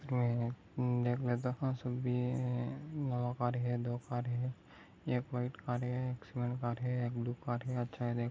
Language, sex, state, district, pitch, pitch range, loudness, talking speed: Hindi, male, Maharashtra, Dhule, 125 Hz, 120-125 Hz, -37 LUFS, 165 wpm